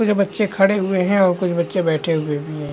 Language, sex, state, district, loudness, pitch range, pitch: Hindi, male, Chhattisgarh, Raigarh, -18 LUFS, 160-195 Hz, 185 Hz